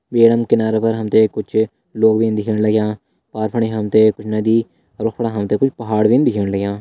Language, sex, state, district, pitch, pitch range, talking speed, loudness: Hindi, male, Uttarakhand, Uttarkashi, 110 Hz, 105-115 Hz, 210 wpm, -17 LUFS